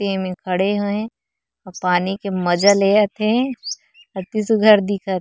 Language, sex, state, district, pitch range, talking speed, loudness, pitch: Chhattisgarhi, female, Chhattisgarh, Korba, 185-215 Hz, 160 wpm, -18 LUFS, 200 Hz